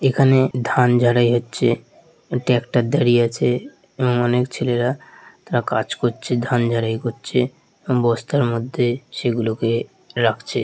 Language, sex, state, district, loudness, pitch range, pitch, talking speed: Bengali, male, West Bengal, Dakshin Dinajpur, -20 LUFS, 120-125 Hz, 120 Hz, 125 wpm